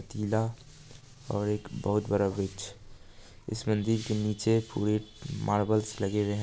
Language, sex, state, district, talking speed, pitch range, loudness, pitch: Maithili, male, Bihar, Supaul, 130 wpm, 100-110 Hz, -30 LUFS, 105 Hz